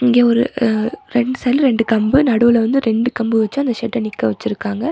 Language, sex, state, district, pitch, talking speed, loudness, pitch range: Tamil, female, Tamil Nadu, Nilgiris, 235 Hz, 170 wpm, -16 LUFS, 225-250 Hz